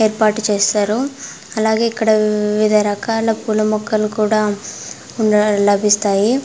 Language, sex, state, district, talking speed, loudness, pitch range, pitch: Telugu, female, Andhra Pradesh, Anantapur, 100 wpm, -16 LUFS, 210-220 Hz, 215 Hz